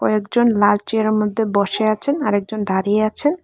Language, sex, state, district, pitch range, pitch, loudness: Bengali, female, Tripura, West Tripura, 205-225 Hz, 215 Hz, -18 LUFS